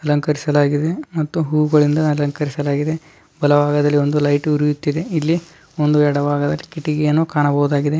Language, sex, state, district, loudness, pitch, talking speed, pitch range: Kannada, male, Karnataka, Dharwad, -18 LUFS, 150 Hz, 105 wpm, 145-155 Hz